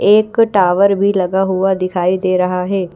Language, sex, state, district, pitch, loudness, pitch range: Hindi, female, Odisha, Malkangiri, 190 Hz, -14 LUFS, 185-200 Hz